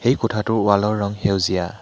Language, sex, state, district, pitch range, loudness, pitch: Assamese, male, Assam, Hailakandi, 100-110 Hz, -20 LUFS, 105 Hz